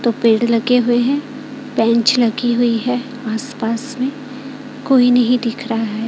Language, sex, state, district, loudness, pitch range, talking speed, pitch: Hindi, female, Bihar, Katihar, -16 LUFS, 230-265 Hz, 160 wpm, 245 Hz